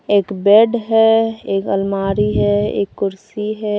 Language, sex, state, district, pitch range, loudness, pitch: Hindi, female, Jharkhand, Deoghar, 195-215 Hz, -16 LUFS, 200 Hz